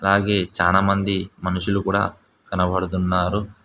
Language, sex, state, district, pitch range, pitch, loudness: Telugu, male, Telangana, Hyderabad, 90-100 Hz, 100 Hz, -21 LUFS